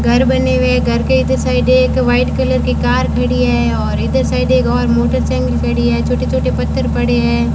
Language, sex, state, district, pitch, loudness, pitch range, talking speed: Hindi, female, Rajasthan, Bikaner, 80 Hz, -14 LUFS, 75-80 Hz, 215 wpm